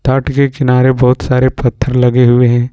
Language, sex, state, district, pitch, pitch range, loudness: Hindi, male, Jharkhand, Ranchi, 125 Hz, 125-130 Hz, -11 LUFS